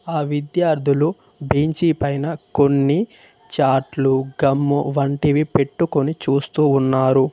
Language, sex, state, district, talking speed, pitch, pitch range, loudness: Telugu, male, Telangana, Mahabubabad, 90 wpm, 145 Hz, 140-155 Hz, -19 LUFS